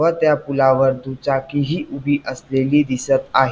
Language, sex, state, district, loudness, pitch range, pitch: Marathi, male, Maharashtra, Pune, -18 LUFS, 135-145 Hz, 135 Hz